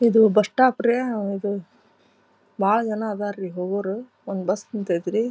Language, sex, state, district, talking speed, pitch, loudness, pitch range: Kannada, female, Karnataka, Dharwad, 135 wpm, 210 Hz, -23 LUFS, 195-225 Hz